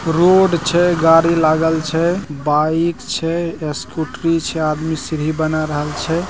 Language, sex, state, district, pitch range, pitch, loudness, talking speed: Maithili, male, Bihar, Purnia, 155-165 Hz, 160 Hz, -17 LUFS, 115 wpm